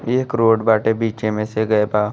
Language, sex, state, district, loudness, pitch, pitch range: Bhojpuri, male, Uttar Pradesh, Gorakhpur, -18 LUFS, 110 Hz, 105-115 Hz